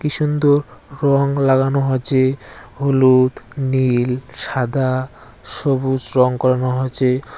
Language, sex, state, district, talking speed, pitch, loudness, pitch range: Bengali, male, West Bengal, Cooch Behar, 100 wpm, 130 Hz, -17 LUFS, 125-140 Hz